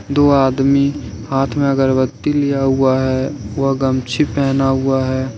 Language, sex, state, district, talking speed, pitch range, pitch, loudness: Hindi, male, Jharkhand, Ranchi, 145 wpm, 130-140 Hz, 135 Hz, -16 LUFS